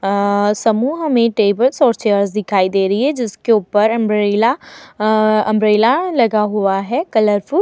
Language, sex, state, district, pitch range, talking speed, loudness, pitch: Hindi, female, Uttar Pradesh, Muzaffarnagar, 205-235 Hz, 155 wpm, -15 LUFS, 215 Hz